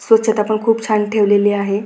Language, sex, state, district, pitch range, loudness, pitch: Marathi, female, Maharashtra, Pune, 205-220 Hz, -15 LUFS, 215 Hz